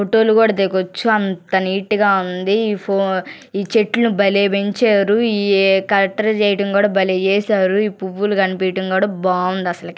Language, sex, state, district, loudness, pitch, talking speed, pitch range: Telugu, female, Andhra Pradesh, Guntur, -16 LUFS, 200 Hz, 145 wpm, 190-210 Hz